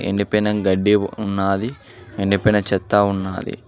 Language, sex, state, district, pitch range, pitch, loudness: Telugu, male, Telangana, Mahabubabad, 95-105 Hz, 100 Hz, -19 LUFS